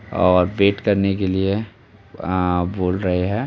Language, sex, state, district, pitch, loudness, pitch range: Hindi, male, Uttar Pradesh, Jalaun, 95 Hz, -19 LUFS, 90-100 Hz